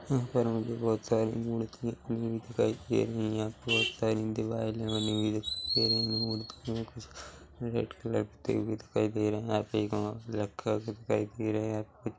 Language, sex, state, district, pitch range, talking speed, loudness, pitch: Hindi, male, Chhattisgarh, Korba, 105-115 Hz, 175 wpm, -32 LUFS, 110 Hz